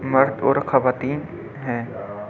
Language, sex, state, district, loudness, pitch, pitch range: Hindi, male, Delhi, New Delhi, -22 LUFS, 135 Hz, 120-135 Hz